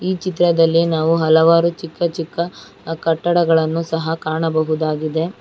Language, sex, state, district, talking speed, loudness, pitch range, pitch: Kannada, female, Karnataka, Bangalore, 90 wpm, -17 LUFS, 160-170 Hz, 165 Hz